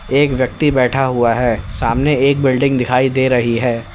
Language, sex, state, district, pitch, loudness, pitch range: Hindi, male, Uttar Pradesh, Lalitpur, 130 Hz, -15 LUFS, 120-135 Hz